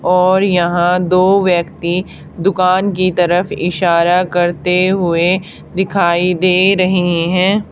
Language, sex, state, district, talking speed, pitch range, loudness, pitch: Hindi, female, Haryana, Charkhi Dadri, 110 wpm, 175-185 Hz, -13 LUFS, 180 Hz